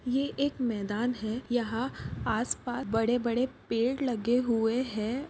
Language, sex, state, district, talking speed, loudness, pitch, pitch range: Hindi, female, Maharashtra, Pune, 135 wpm, -30 LUFS, 245 Hz, 225-255 Hz